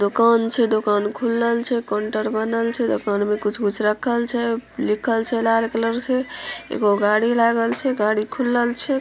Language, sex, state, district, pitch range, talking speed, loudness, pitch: Maithili, female, Bihar, Samastipur, 215-235 Hz, 175 wpm, -20 LUFS, 230 Hz